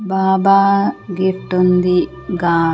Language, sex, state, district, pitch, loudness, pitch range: Telugu, female, Andhra Pradesh, Sri Satya Sai, 185 Hz, -15 LUFS, 180-195 Hz